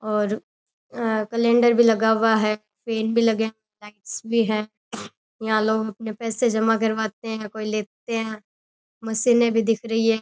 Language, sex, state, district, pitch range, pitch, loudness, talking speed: Rajasthani, female, Rajasthan, Churu, 215-225 Hz, 220 Hz, -22 LUFS, 165 wpm